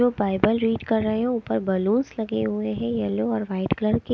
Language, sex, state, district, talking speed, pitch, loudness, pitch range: Hindi, female, Haryana, Charkhi Dadri, 230 wpm, 215 Hz, -24 LUFS, 160-225 Hz